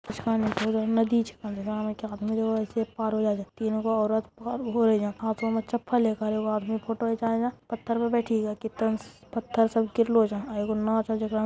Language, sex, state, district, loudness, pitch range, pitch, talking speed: Angika, female, Bihar, Bhagalpur, -27 LUFS, 215-230 Hz, 220 Hz, 250 wpm